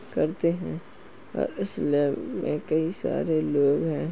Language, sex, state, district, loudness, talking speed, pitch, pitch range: Hindi, male, Uttar Pradesh, Jalaun, -26 LUFS, 145 wpm, 155 Hz, 145-160 Hz